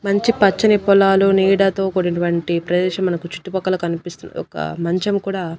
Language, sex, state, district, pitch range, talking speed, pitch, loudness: Telugu, female, Andhra Pradesh, Annamaya, 175-195 Hz, 130 wpm, 185 Hz, -17 LUFS